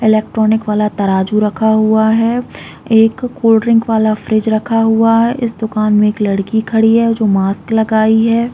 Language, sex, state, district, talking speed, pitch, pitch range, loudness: Hindi, female, Chhattisgarh, Raigarh, 175 wpm, 220 Hz, 215-225 Hz, -13 LUFS